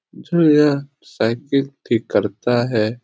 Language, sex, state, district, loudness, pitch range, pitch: Hindi, male, Bihar, Supaul, -18 LUFS, 115-140 Hz, 125 Hz